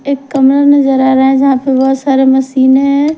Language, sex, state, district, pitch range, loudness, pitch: Hindi, female, Punjab, Kapurthala, 265-280 Hz, -9 LUFS, 270 Hz